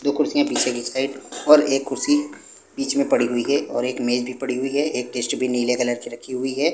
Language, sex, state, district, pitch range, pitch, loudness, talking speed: Hindi, male, Punjab, Pathankot, 125-150 Hz, 135 Hz, -21 LUFS, 240 wpm